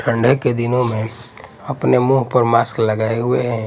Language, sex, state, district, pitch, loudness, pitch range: Hindi, male, Chhattisgarh, Raipur, 120 Hz, -17 LUFS, 110-125 Hz